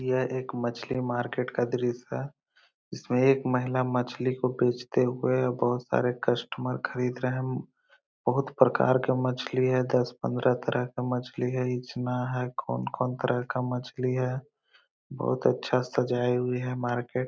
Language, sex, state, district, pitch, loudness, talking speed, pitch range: Hindi, male, Bihar, Araria, 125 Hz, -28 LUFS, 155 wpm, 125-130 Hz